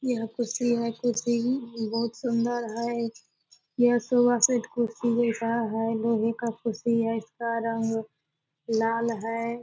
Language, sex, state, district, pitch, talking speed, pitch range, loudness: Hindi, female, Bihar, Purnia, 230 Hz, 135 wpm, 225-240 Hz, -27 LUFS